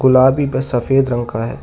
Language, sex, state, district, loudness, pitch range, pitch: Hindi, male, Uttar Pradesh, Shamli, -15 LUFS, 120-135 Hz, 130 Hz